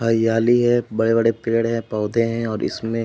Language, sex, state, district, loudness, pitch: Hindi, male, Uttar Pradesh, Etah, -20 LUFS, 115 Hz